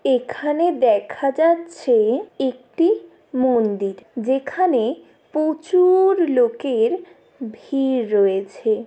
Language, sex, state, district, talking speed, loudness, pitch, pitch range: Bengali, female, West Bengal, Paschim Medinipur, 70 wpm, -19 LUFS, 275 Hz, 240-340 Hz